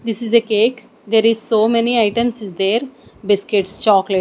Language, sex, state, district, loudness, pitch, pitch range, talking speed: English, female, Odisha, Nuapada, -16 LUFS, 220 Hz, 205-235 Hz, 200 wpm